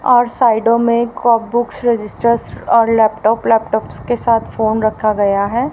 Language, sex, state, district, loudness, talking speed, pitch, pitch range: Hindi, female, Haryana, Rohtak, -15 LUFS, 155 wpm, 230 Hz, 220-240 Hz